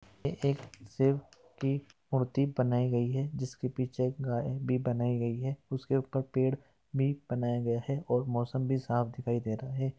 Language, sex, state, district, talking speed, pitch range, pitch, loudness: Hindi, male, Chhattisgarh, Raigarh, 180 wpm, 120-135 Hz, 130 Hz, -32 LUFS